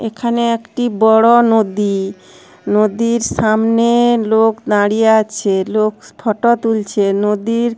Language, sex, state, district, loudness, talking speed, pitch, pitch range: Bengali, female, West Bengal, Jhargram, -14 LUFS, 110 wpm, 220 Hz, 210-230 Hz